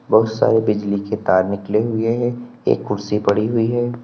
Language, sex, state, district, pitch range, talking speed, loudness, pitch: Hindi, male, Uttar Pradesh, Lalitpur, 105-115 Hz, 195 wpm, -19 LUFS, 110 Hz